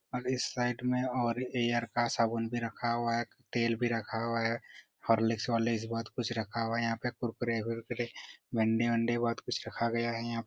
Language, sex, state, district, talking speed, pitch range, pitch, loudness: Hindi, male, Bihar, Araria, 220 wpm, 115-120 Hz, 115 Hz, -33 LUFS